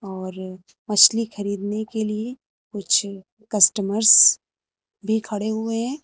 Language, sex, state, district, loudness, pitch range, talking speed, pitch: Hindi, female, Uttar Pradesh, Lucknow, -19 LUFS, 200-220 Hz, 110 wpm, 210 Hz